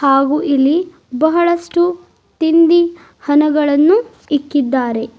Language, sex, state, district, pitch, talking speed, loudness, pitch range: Kannada, female, Karnataka, Bidar, 310 Hz, 70 wpm, -14 LUFS, 285-345 Hz